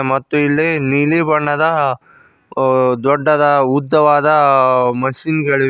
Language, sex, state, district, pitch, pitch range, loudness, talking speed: Kannada, male, Karnataka, Koppal, 145 Hz, 135-150 Hz, -14 LUFS, 95 wpm